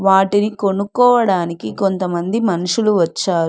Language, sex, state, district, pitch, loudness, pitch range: Telugu, female, Telangana, Hyderabad, 195 Hz, -16 LUFS, 175-210 Hz